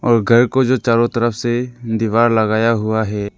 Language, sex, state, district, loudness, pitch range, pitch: Hindi, male, Arunachal Pradesh, Lower Dibang Valley, -16 LUFS, 110-120 Hz, 115 Hz